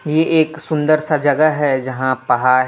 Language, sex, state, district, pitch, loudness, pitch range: Hindi, male, Tripura, West Tripura, 150 Hz, -16 LUFS, 130-155 Hz